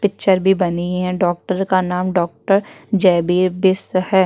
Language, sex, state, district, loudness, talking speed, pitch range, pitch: Hindi, female, Uttarakhand, Tehri Garhwal, -17 LUFS, 155 wpm, 180-190 Hz, 185 Hz